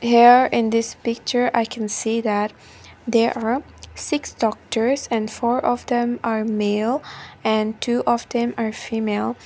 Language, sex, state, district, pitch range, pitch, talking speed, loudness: English, female, Nagaland, Dimapur, 220-240 Hz, 230 Hz, 150 wpm, -21 LUFS